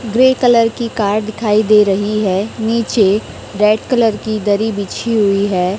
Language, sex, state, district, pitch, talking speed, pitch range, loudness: Hindi, female, Chhattisgarh, Raipur, 215 Hz, 165 wpm, 205-230 Hz, -14 LUFS